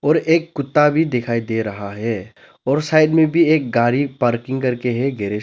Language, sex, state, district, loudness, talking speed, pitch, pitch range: Hindi, male, Arunachal Pradesh, Lower Dibang Valley, -18 LUFS, 210 wpm, 130 Hz, 115-155 Hz